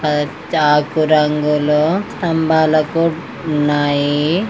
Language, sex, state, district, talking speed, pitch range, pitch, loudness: Telugu, female, Andhra Pradesh, Guntur, 65 wpm, 150-160 Hz, 155 Hz, -16 LUFS